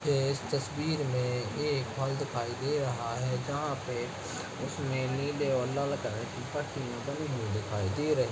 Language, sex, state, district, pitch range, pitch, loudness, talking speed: Hindi, male, Uttarakhand, Uttarkashi, 125-145 Hz, 135 Hz, -33 LUFS, 180 wpm